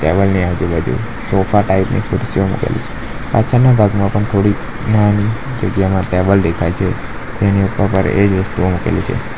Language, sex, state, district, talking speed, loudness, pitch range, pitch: Gujarati, male, Gujarat, Valsad, 145 wpm, -15 LUFS, 95-110 Hz, 100 Hz